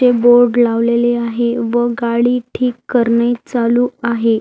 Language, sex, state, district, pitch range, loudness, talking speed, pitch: Marathi, female, Maharashtra, Aurangabad, 235-245 Hz, -14 LUFS, 135 wpm, 240 Hz